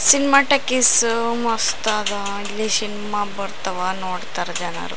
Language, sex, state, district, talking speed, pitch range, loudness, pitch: Kannada, female, Karnataka, Raichur, 110 wpm, 200-235 Hz, -19 LUFS, 215 Hz